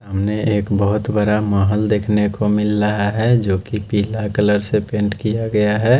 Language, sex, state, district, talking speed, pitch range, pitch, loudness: Hindi, male, Chhattisgarh, Raipur, 190 wpm, 105-110 Hz, 105 Hz, -18 LUFS